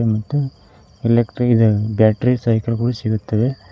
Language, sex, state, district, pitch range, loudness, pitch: Kannada, male, Karnataka, Koppal, 110-120 Hz, -18 LUFS, 115 Hz